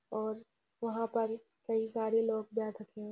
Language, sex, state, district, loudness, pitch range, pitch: Hindi, female, Uttarakhand, Uttarkashi, -36 LUFS, 215-225 Hz, 225 Hz